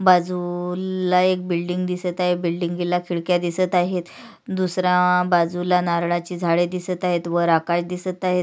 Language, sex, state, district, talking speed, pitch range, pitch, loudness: Marathi, female, Maharashtra, Sindhudurg, 140 wpm, 175-180 Hz, 180 Hz, -21 LUFS